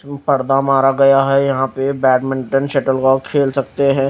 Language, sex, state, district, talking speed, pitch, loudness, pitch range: Hindi, female, Punjab, Fazilka, 190 wpm, 135 Hz, -15 LUFS, 135-140 Hz